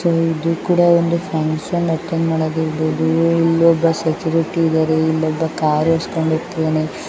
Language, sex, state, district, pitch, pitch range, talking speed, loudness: Kannada, female, Karnataka, Raichur, 165 Hz, 160-165 Hz, 120 wpm, -17 LUFS